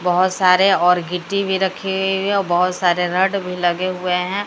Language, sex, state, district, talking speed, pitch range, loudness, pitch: Hindi, female, Odisha, Sambalpur, 190 wpm, 180-190 Hz, -18 LUFS, 185 Hz